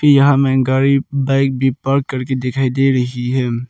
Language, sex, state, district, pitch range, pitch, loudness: Hindi, male, Arunachal Pradesh, Lower Dibang Valley, 130-135 Hz, 135 Hz, -16 LUFS